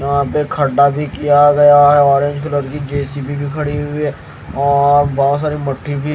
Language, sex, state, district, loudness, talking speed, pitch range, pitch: Hindi, male, Haryana, Jhajjar, -14 LUFS, 185 wpm, 140-145 Hz, 145 Hz